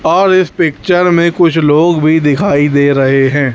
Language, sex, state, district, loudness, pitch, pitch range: Hindi, male, Chhattisgarh, Raipur, -10 LUFS, 160 Hz, 145-175 Hz